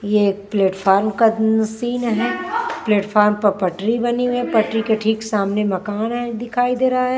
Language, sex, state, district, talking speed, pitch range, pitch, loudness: Hindi, female, Maharashtra, Washim, 185 wpm, 205-240 Hz, 220 Hz, -19 LUFS